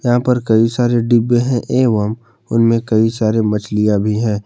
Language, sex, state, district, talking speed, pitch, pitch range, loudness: Hindi, male, Jharkhand, Palamu, 175 wpm, 115 Hz, 110-120 Hz, -15 LUFS